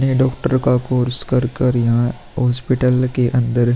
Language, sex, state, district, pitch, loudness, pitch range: Hindi, male, Bihar, Vaishali, 125 Hz, -17 LUFS, 120-130 Hz